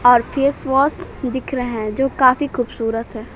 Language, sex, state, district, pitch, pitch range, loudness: Hindi, female, Bihar, West Champaran, 255 Hz, 235-275 Hz, -18 LUFS